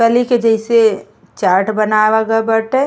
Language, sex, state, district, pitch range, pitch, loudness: Bhojpuri, female, Uttar Pradesh, Gorakhpur, 215-230 Hz, 225 Hz, -13 LUFS